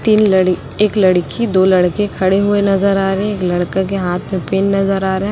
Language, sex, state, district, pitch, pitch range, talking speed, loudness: Hindi, male, Chhattisgarh, Raipur, 195 Hz, 185-200 Hz, 250 wpm, -15 LUFS